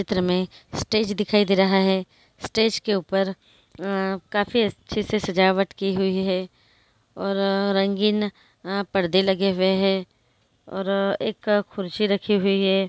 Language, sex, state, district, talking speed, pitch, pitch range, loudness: Hindi, female, Maharashtra, Dhule, 145 wpm, 195 Hz, 190-200 Hz, -23 LUFS